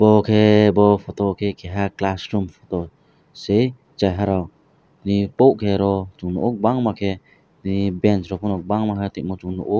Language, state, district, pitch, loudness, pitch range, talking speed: Kokborok, Tripura, West Tripura, 100 Hz, -20 LUFS, 95-105 Hz, 120 wpm